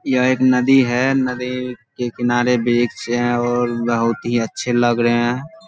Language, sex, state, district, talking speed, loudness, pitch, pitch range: Hindi, male, Bihar, Saharsa, 170 wpm, -18 LUFS, 120 Hz, 120-125 Hz